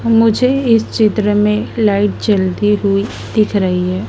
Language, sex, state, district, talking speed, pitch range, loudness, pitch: Hindi, female, Madhya Pradesh, Dhar, 145 wpm, 200-220 Hz, -14 LUFS, 210 Hz